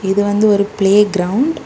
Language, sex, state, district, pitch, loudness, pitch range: Tamil, female, Tamil Nadu, Kanyakumari, 205 Hz, -14 LUFS, 195-210 Hz